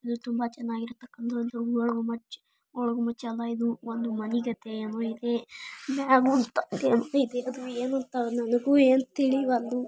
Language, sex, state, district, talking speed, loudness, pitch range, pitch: Kannada, female, Karnataka, Bijapur, 135 wpm, -28 LUFS, 235-255 Hz, 240 Hz